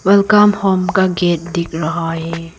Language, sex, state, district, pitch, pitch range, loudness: Hindi, female, Arunachal Pradesh, Lower Dibang Valley, 175 Hz, 165-195 Hz, -15 LUFS